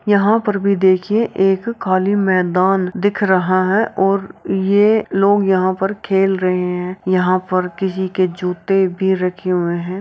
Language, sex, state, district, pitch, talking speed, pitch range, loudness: Hindi, female, Uttar Pradesh, Jyotiba Phule Nagar, 190 Hz, 160 wpm, 185-200 Hz, -16 LUFS